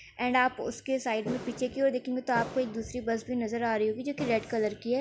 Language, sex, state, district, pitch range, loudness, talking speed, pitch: Hindi, female, Bihar, Bhagalpur, 225-255 Hz, -30 LUFS, 300 wpm, 245 Hz